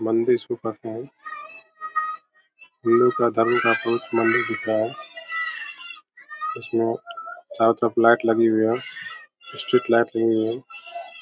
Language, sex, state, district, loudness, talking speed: Hindi, male, Bihar, Begusarai, -22 LUFS, 140 wpm